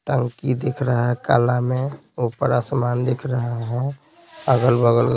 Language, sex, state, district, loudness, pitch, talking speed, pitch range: Hindi, male, Bihar, Patna, -21 LUFS, 125 Hz, 140 wpm, 120-135 Hz